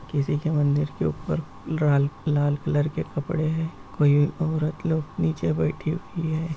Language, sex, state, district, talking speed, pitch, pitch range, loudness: Hindi, male, West Bengal, Purulia, 165 wpm, 150 Hz, 145-160 Hz, -25 LUFS